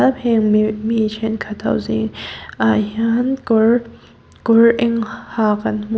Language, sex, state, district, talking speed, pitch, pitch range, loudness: Mizo, female, Mizoram, Aizawl, 110 wpm, 220 Hz, 210-230 Hz, -17 LUFS